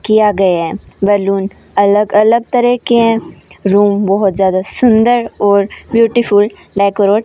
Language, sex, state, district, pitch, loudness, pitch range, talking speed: Hindi, female, Rajasthan, Bikaner, 205 Hz, -12 LUFS, 200-230 Hz, 140 wpm